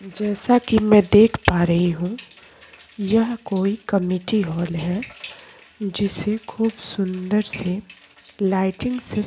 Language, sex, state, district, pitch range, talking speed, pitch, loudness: Hindi, female, Uttar Pradesh, Jyotiba Phule Nagar, 190-215 Hz, 125 wpm, 200 Hz, -21 LUFS